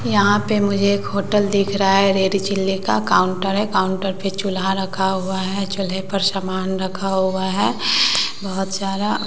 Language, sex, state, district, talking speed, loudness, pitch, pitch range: Hindi, female, Bihar, West Champaran, 175 wpm, -19 LUFS, 195 Hz, 190-200 Hz